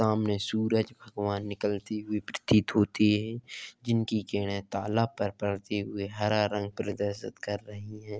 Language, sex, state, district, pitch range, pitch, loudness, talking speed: Hindi, male, Uttar Pradesh, Jalaun, 100-110 Hz, 105 Hz, -30 LUFS, 155 wpm